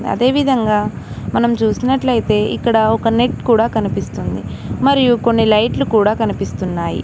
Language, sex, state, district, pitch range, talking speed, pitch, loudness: Telugu, female, Telangana, Mahabubabad, 215-245 Hz, 120 wpm, 225 Hz, -16 LUFS